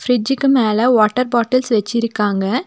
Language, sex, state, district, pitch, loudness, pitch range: Tamil, female, Tamil Nadu, Nilgiris, 235 Hz, -16 LUFS, 215-255 Hz